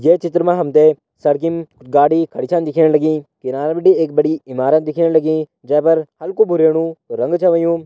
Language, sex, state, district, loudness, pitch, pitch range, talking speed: Hindi, male, Uttarakhand, Tehri Garhwal, -15 LUFS, 160 Hz, 150-165 Hz, 190 wpm